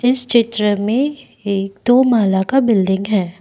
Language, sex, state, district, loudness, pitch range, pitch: Hindi, female, Assam, Kamrup Metropolitan, -16 LUFS, 195-250 Hz, 215 Hz